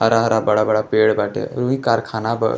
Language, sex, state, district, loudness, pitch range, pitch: Bhojpuri, male, Uttar Pradesh, Gorakhpur, -18 LUFS, 110-115 Hz, 110 Hz